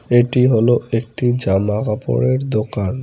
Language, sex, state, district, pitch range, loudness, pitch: Bengali, male, West Bengal, Cooch Behar, 105-125 Hz, -17 LUFS, 120 Hz